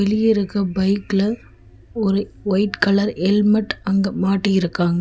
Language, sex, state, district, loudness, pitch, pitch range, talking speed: Tamil, female, Tamil Nadu, Chennai, -19 LUFS, 200 Hz, 195-210 Hz, 110 wpm